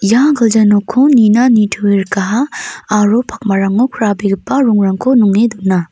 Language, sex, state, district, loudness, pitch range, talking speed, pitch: Garo, female, Meghalaya, North Garo Hills, -12 LUFS, 200-240 Hz, 120 wpm, 215 Hz